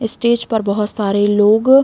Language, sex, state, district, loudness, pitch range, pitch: Hindi, female, Uttar Pradesh, Deoria, -15 LUFS, 205-235 Hz, 220 Hz